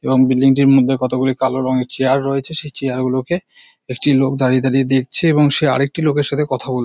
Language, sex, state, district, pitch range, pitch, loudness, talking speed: Bengali, male, West Bengal, North 24 Parganas, 130-145 Hz, 135 Hz, -16 LUFS, 210 wpm